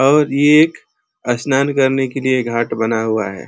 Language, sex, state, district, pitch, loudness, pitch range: Hindi, male, Uttar Pradesh, Ghazipur, 130 Hz, -15 LUFS, 115-140 Hz